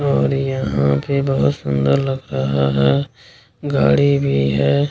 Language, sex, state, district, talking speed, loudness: Hindi, male, Bihar, Kishanganj, 145 wpm, -17 LUFS